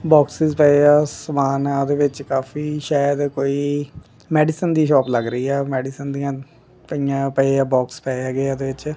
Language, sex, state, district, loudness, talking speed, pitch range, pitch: Punjabi, male, Punjab, Kapurthala, -19 LUFS, 180 wpm, 135-145 Hz, 140 Hz